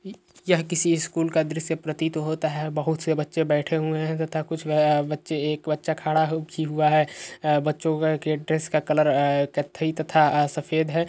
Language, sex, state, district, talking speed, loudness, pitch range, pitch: Hindi, male, Uttar Pradesh, Etah, 195 wpm, -24 LUFS, 150-160 Hz, 155 Hz